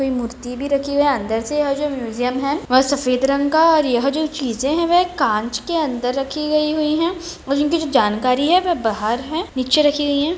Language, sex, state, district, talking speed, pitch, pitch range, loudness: Hindi, female, Bihar, Saran, 235 wpm, 280 Hz, 250-310 Hz, -18 LUFS